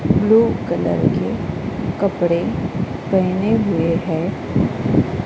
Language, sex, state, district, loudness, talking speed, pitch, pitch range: Hindi, female, Maharashtra, Gondia, -19 LUFS, 80 wpm, 190 Hz, 170-200 Hz